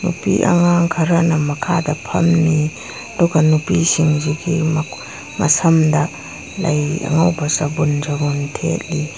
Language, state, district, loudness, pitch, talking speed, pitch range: Manipuri, Manipur, Imphal West, -17 LUFS, 160 Hz, 100 wpm, 150-170 Hz